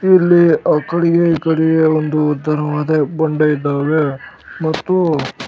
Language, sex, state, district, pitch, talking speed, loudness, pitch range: Kannada, male, Karnataka, Bellary, 155 Hz, 100 wpm, -15 LUFS, 150-165 Hz